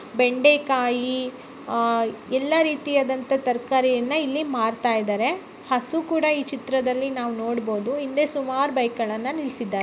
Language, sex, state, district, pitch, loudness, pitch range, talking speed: Kannada, male, Karnataka, Bellary, 255 Hz, -23 LUFS, 240-285 Hz, 105 wpm